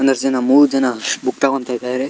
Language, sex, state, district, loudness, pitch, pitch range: Kannada, male, Karnataka, Shimoga, -16 LUFS, 130 Hz, 125-135 Hz